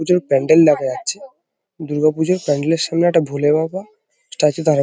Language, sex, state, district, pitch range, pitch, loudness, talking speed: Bengali, male, West Bengal, Paschim Medinipur, 150-175 Hz, 160 Hz, -17 LUFS, 175 wpm